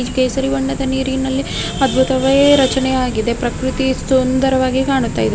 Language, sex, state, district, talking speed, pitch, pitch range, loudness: Kannada, female, Karnataka, Dharwad, 110 wpm, 265 Hz, 260-270 Hz, -16 LUFS